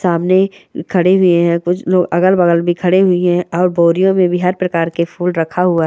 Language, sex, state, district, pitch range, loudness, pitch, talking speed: Hindi, female, Bihar, Darbhanga, 170-185 Hz, -13 LUFS, 180 Hz, 205 wpm